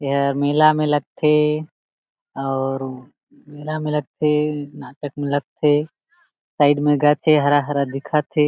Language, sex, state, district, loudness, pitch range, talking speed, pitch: Chhattisgarhi, male, Chhattisgarh, Jashpur, -19 LUFS, 140-150 Hz, 125 wpm, 145 Hz